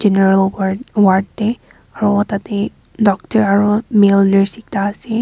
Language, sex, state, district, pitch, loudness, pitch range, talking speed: Nagamese, female, Nagaland, Kohima, 205 Hz, -15 LUFS, 195-210 Hz, 125 wpm